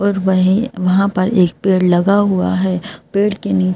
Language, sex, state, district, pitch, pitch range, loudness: Hindi, male, Madhya Pradesh, Bhopal, 190 Hz, 185-200 Hz, -15 LUFS